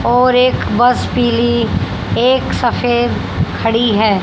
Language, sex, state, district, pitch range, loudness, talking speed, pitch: Hindi, female, Haryana, Rohtak, 230-245 Hz, -14 LUFS, 115 wpm, 240 Hz